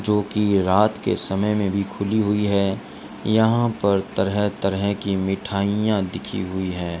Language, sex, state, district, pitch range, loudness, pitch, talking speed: Hindi, male, Rajasthan, Bikaner, 95-105 Hz, -21 LUFS, 100 Hz, 155 wpm